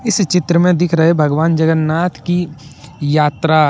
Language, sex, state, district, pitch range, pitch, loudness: Hindi, male, Jharkhand, Deoghar, 150-175 Hz, 160 Hz, -14 LUFS